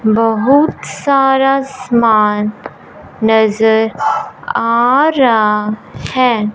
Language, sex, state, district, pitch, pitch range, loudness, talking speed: Hindi, male, Punjab, Fazilka, 230 Hz, 215-270 Hz, -13 LUFS, 65 wpm